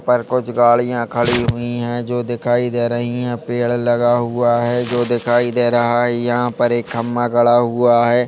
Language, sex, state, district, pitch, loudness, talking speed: Hindi, male, Chhattisgarh, Kabirdham, 120 Hz, -16 LUFS, 205 wpm